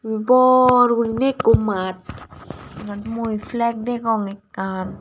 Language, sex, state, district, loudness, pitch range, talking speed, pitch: Chakma, female, Tripura, Dhalai, -19 LUFS, 190-240 Hz, 110 wpm, 220 Hz